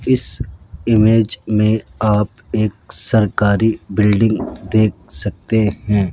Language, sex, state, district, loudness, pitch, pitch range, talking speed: Hindi, male, Rajasthan, Jaipur, -17 LUFS, 105 Hz, 100-110 Hz, 100 wpm